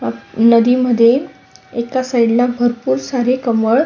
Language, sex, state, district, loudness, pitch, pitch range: Marathi, female, Maharashtra, Sindhudurg, -15 LUFS, 235 Hz, 230-250 Hz